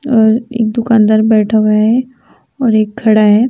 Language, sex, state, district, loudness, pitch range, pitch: Hindi, female, Uttar Pradesh, Budaun, -11 LUFS, 215-235 Hz, 220 Hz